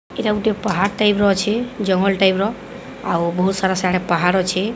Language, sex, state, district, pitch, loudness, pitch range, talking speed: Odia, female, Odisha, Sambalpur, 195 Hz, -18 LUFS, 185-210 Hz, 190 wpm